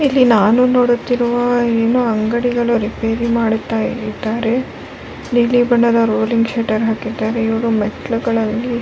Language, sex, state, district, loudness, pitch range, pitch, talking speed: Kannada, female, Karnataka, Raichur, -16 LUFS, 225-240 Hz, 230 Hz, 100 wpm